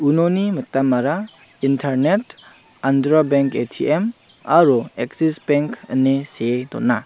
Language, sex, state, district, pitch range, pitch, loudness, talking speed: Garo, male, Meghalaya, South Garo Hills, 135-160 Hz, 140 Hz, -19 LUFS, 100 wpm